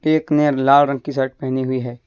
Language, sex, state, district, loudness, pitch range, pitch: Hindi, male, Jharkhand, Deoghar, -18 LUFS, 130-145 Hz, 135 Hz